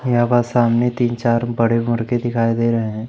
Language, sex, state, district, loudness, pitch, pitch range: Hindi, male, Madhya Pradesh, Umaria, -18 LUFS, 120 Hz, 115-120 Hz